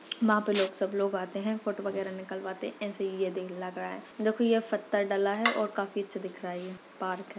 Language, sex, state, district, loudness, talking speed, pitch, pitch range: Hindi, female, Maharashtra, Sindhudurg, -31 LUFS, 225 wpm, 200 Hz, 190-210 Hz